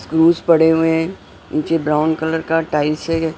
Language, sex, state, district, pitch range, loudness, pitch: Hindi, male, Maharashtra, Mumbai Suburban, 155-165 Hz, -17 LUFS, 160 Hz